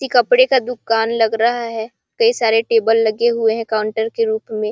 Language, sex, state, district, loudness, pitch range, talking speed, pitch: Hindi, female, Chhattisgarh, Sarguja, -16 LUFS, 225-240 Hz, 230 wpm, 225 Hz